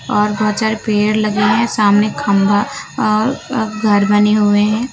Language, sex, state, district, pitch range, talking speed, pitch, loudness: Hindi, female, Uttar Pradesh, Lucknow, 205-220 Hz, 160 wpm, 215 Hz, -14 LUFS